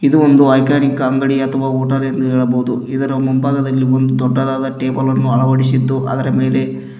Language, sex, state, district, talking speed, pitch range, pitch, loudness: Kannada, male, Karnataka, Koppal, 145 wpm, 130-135 Hz, 130 Hz, -15 LUFS